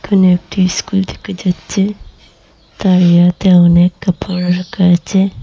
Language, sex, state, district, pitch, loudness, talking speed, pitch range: Bengali, female, Assam, Hailakandi, 185 Hz, -13 LUFS, 110 wpm, 180-190 Hz